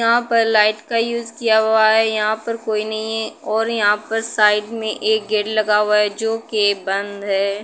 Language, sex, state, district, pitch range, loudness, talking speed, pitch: Hindi, female, Uttar Pradesh, Budaun, 210-225 Hz, -18 LUFS, 205 wpm, 220 Hz